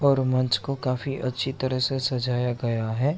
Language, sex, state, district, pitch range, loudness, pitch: Hindi, male, Bihar, Araria, 125-135 Hz, -26 LUFS, 130 Hz